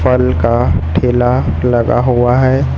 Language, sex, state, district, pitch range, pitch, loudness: Hindi, male, Chhattisgarh, Raipur, 120-125 Hz, 125 Hz, -12 LUFS